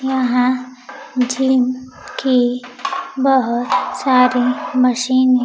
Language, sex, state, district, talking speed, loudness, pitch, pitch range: Hindi, female, Bihar, Kaimur, 75 wpm, -17 LUFS, 255 Hz, 250-265 Hz